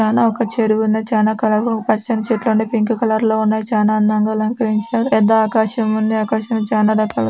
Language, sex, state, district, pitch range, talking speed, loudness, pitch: Telugu, female, Andhra Pradesh, Anantapur, 215-225 Hz, 205 wpm, -16 LUFS, 220 Hz